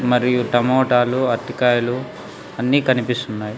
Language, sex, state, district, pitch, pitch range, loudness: Telugu, male, Andhra Pradesh, Sri Satya Sai, 125 Hz, 120-125 Hz, -18 LUFS